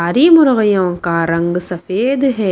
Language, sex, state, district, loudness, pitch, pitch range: Hindi, female, Maharashtra, Washim, -14 LUFS, 185 Hz, 170-260 Hz